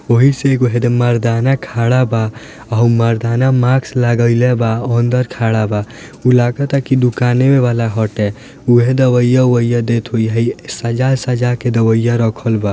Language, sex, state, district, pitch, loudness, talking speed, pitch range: Bhojpuri, male, Bihar, Gopalganj, 120 Hz, -14 LUFS, 140 wpm, 115-125 Hz